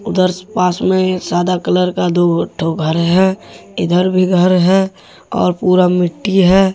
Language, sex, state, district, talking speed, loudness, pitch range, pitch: Hindi, male, Jharkhand, Deoghar, 160 wpm, -14 LUFS, 175-190 Hz, 180 Hz